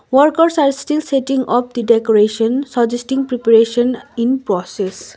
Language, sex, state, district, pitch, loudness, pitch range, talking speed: English, female, Sikkim, Gangtok, 245 Hz, -15 LUFS, 230-270 Hz, 125 wpm